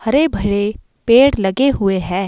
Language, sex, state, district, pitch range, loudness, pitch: Hindi, female, Himachal Pradesh, Shimla, 195-270 Hz, -15 LUFS, 210 Hz